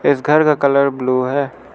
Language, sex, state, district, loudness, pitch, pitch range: Hindi, male, Arunachal Pradesh, Lower Dibang Valley, -15 LUFS, 140 Hz, 130-145 Hz